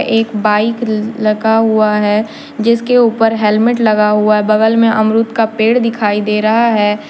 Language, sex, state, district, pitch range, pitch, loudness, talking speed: Hindi, female, Jharkhand, Deoghar, 210-230 Hz, 220 Hz, -12 LUFS, 170 wpm